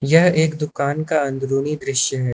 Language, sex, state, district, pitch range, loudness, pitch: Hindi, male, Uttar Pradesh, Lucknow, 135-155 Hz, -19 LUFS, 140 Hz